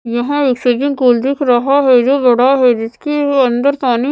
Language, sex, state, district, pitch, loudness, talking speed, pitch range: Hindi, female, Maharashtra, Mumbai Suburban, 260 Hz, -13 LUFS, 175 wpm, 245-280 Hz